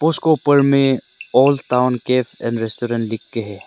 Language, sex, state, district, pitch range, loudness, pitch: Hindi, male, Arunachal Pradesh, Lower Dibang Valley, 115-140 Hz, -17 LUFS, 125 Hz